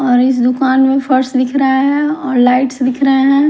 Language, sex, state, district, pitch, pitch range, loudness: Hindi, female, Himachal Pradesh, Shimla, 265 Hz, 255-275 Hz, -12 LUFS